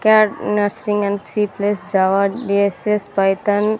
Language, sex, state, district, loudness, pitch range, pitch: Telugu, female, Andhra Pradesh, Sri Satya Sai, -18 LUFS, 200-210 Hz, 205 Hz